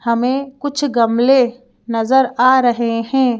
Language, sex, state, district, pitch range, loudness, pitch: Hindi, female, Madhya Pradesh, Bhopal, 235-265 Hz, -15 LUFS, 250 Hz